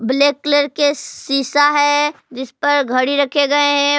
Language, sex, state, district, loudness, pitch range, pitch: Hindi, female, Jharkhand, Palamu, -15 LUFS, 275-290 Hz, 285 Hz